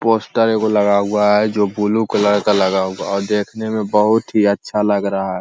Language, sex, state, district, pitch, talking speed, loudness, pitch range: Hindi, male, Uttar Pradesh, Hamirpur, 105 Hz, 235 wpm, -16 LUFS, 100-110 Hz